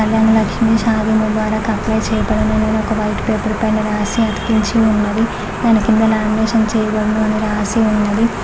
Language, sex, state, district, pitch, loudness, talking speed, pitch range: Telugu, female, Telangana, Mahabubabad, 220 Hz, -15 LUFS, 150 wpm, 215-220 Hz